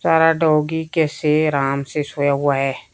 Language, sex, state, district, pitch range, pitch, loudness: Hindi, female, Himachal Pradesh, Shimla, 140-160 Hz, 150 Hz, -18 LUFS